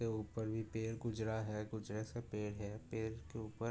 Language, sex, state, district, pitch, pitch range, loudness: Hindi, male, Uttar Pradesh, Budaun, 110 Hz, 105-110 Hz, -43 LUFS